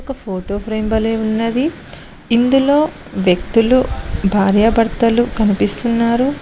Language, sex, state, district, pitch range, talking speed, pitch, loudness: Telugu, female, Telangana, Mahabubabad, 215-255 Hz, 85 wpm, 230 Hz, -15 LUFS